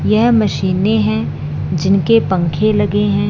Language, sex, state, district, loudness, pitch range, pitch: Hindi, female, Punjab, Fazilka, -15 LUFS, 170-210 Hz, 195 Hz